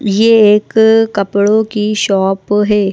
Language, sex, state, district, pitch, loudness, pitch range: Hindi, female, Madhya Pradesh, Bhopal, 210 Hz, -11 LUFS, 200-220 Hz